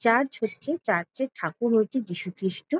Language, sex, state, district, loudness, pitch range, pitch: Bengali, female, West Bengal, Jalpaiguri, -27 LUFS, 190-260 Hz, 230 Hz